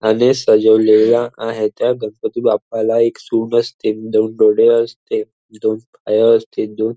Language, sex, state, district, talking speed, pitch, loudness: Marathi, male, Maharashtra, Nagpur, 140 wpm, 115 Hz, -15 LUFS